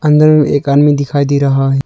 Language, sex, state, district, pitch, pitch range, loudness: Hindi, male, Arunachal Pradesh, Lower Dibang Valley, 140 Hz, 140-150 Hz, -11 LUFS